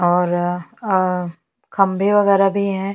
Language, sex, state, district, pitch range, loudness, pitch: Hindi, female, Chhattisgarh, Bastar, 180-200 Hz, -18 LUFS, 190 Hz